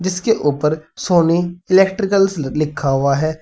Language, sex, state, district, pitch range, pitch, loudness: Hindi, male, Uttar Pradesh, Saharanpur, 150-190 Hz, 165 Hz, -17 LUFS